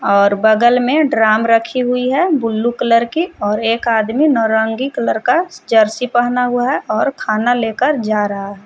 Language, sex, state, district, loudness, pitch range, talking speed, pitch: Hindi, female, Jharkhand, Palamu, -15 LUFS, 220-250 Hz, 185 wpm, 230 Hz